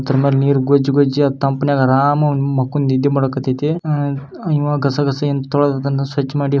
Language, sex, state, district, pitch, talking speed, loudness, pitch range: Kannada, male, Karnataka, Shimoga, 140 Hz, 200 wpm, -16 LUFS, 135-145 Hz